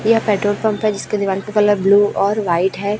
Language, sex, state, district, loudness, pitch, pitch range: Hindi, male, Chhattisgarh, Raipur, -16 LUFS, 205 Hz, 200-210 Hz